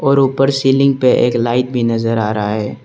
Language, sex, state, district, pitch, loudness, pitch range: Hindi, male, Arunachal Pradesh, Lower Dibang Valley, 125 Hz, -14 LUFS, 115-135 Hz